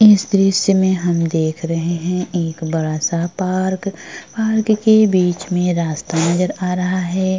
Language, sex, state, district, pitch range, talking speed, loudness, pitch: Hindi, female, Maharashtra, Chandrapur, 170-190 Hz, 160 wpm, -17 LUFS, 180 Hz